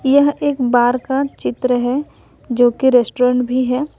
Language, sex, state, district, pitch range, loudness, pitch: Hindi, female, Jharkhand, Ranchi, 245-275 Hz, -16 LUFS, 255 Hz